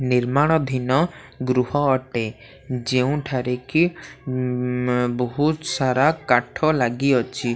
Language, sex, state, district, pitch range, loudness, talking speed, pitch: Odia, male, Odisha, Khordha, 125-145 Hz, -21 LUFS, 70 wpm, 130 Hz